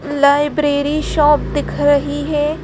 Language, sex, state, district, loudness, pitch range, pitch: Hindi, female, Madhya Pradesh, Bhopal, -15 LUFS, 285-295 Hz, 290 Hz